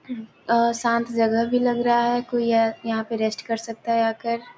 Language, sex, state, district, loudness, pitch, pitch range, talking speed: Hindi, female, Bihar, Gopalganj, -22 LUFS, 235 Hz, 225-240 Hz, 250 wpm